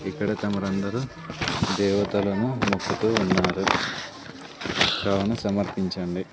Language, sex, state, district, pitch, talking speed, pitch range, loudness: Telugu, male, Andhra Pradesh, Sri Satya Sai, 100 Hz, 65 wpm, 95-105 Hz, -25 LUFS